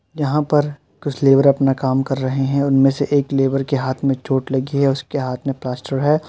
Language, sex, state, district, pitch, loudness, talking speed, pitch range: Hindi, male, Uttar Pradesh, Muzaffarnagar, 135 Hz, -18 LUFS, 230 wpm, 135-145 Hz